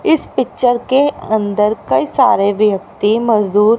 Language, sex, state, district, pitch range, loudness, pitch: Hindi, female, Haryana, Rohtak, 210-255 Hz, -14 LUFS, 220 Hz